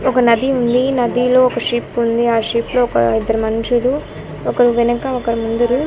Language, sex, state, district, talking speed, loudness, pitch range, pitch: Telugu, female, Andhra Pradesh, Annamaya, 185 wpm, -16 LUFS, 230-250 Hz, 240 Hz